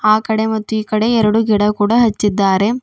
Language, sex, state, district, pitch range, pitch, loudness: Kannada, female, Karnataka, Bidar, 210-220 Hz, 215 Hz, -15 LUFS